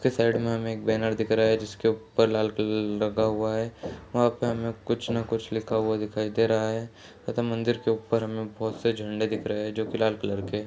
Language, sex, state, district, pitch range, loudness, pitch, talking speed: Hindi, male, Bihar, Kishanganj, 110-115 Hz, -27 LUFS, 110 Hz, 255 wpm